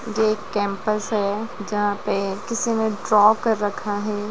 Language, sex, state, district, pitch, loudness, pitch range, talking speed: Hindi, female, Bihar, Jahanabad, 210 Hz, -22 LUFS, 205-220 Hz, 165 wpm